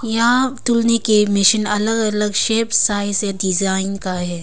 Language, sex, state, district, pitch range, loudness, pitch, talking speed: Hindi, female, Arunachal Pradesh, Longding, 195-225 Hz, -16 LUFS, 210 Hz, 165 wpm